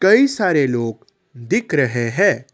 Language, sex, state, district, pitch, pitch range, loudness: Hindi, male, Assam, Kamrup Metropolitan, 140 Hz, 120-190 Hz, -17 LUFS